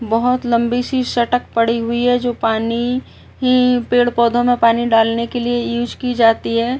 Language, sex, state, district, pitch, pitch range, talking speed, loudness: Hindi, female, Uttar Pradesh, Varanasi, 240 Hz, 230-245 Hz, 185 wpm, -16 LUFS